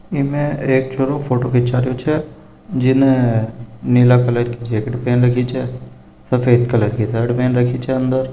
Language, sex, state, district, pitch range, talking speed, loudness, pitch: Marwari, male, Rajasthan, Nagaur, 120-130 Hz, 180 wpm, -17 LUFS, 125 Hz